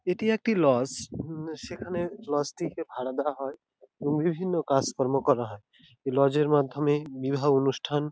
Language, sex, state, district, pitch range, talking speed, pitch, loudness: Bengali, male, West Bengal, Dakshin Dinajpur, 135-160 Hz, 155 wpm, 145 Hz, -28 LUFS